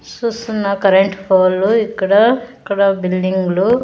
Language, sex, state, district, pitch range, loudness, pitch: Telugu, female, Andhra Pradesh, Sri Satya Sai, 190-225 Hz, -15 LUFS, 200 Hz